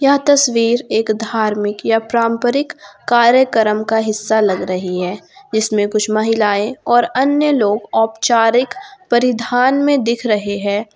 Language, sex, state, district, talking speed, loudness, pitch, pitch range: Hindi, female, Jharkhand, Garhwa, 130 wpm, -15 LUFS, 225 Hz, 215-250 Hz